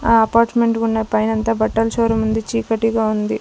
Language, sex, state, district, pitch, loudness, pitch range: Telugu, female, Andhra Pradesh, Sri Satya Sai, 225 Hz, -17 LUFS, 220-230 Hz